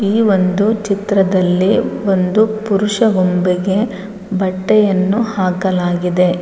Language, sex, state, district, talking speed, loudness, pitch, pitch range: Kannada, female, Karnataka, Raichur, 75 wpm, -15 LUFS, 195 Hz, 185-210 Hz